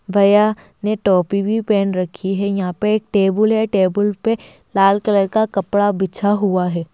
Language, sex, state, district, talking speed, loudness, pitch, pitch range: Hindi, female, Bihar, Kishanganj, 180 wpm, -17 LUFS, 200 Hz, 195-210 Hz